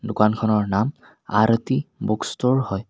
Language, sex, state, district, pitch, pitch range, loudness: Assamese, male, Assam, Kamrup Metropolitan, 110 Hz, 105-125 Hz, -22 LUFS